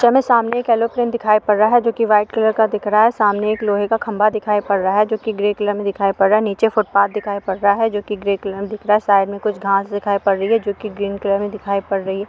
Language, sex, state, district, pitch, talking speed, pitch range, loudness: Hindi, female, Uttar Pradesh, Varanasi, 210 Hz, 320 wpm, 200-220 Hz, -17 LUFS